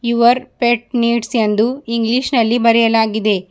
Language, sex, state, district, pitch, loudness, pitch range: Kannada, female, Karnataka, Bidar, 235 Hz, -15 LUFS, 225-240 Hz